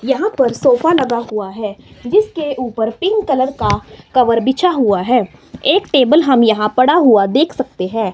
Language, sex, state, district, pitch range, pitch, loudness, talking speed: Hindi, female, Himachal Pradesh, Shimla, 220-320 Hz, 255 Hz, -14 LUFS, 175 wpm